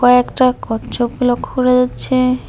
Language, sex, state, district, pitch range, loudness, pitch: Bengali, male, West Bengal, Alipurduar, 245-255 Hz, -15 LUFS, 250 Hz